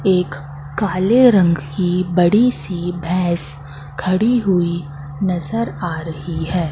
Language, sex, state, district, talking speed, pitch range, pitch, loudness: Hindi, female, Madhya Pradesh, Katni, 115 wpm, 155-185 Hz, 175 Hz, -18 LUFS